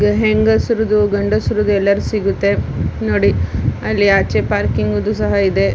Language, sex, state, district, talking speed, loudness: Kannada, female, Karnataka, Dakshina Kannada, 105 wpm, -16 LUFS